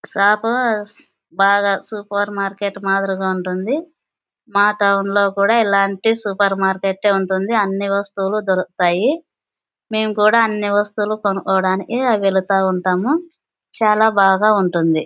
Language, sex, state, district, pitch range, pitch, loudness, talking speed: Telugu, female, Andhra Pradesh, Anantapur, 195-215 Hz, 200 Hz, -17 LUFS, 110 wpm